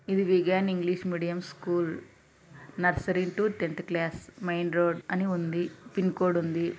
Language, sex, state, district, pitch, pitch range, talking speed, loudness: Telugu, female, Andhra Pradesh, Anantapur, 180 Hz, 170-185 Hz, 135 wpm, -29 LUFS